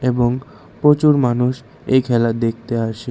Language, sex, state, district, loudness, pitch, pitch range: Bengali, male, Tripura, West Tripura, -17 LUFS, 120 Hz, 115-130 Hz